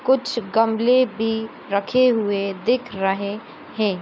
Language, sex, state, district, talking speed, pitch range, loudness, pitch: Hindi, female, Uttar Pradesh, Muzaffarnagar, 120 wpm, 200-245 Hz, -21 LUFS, 225 Hz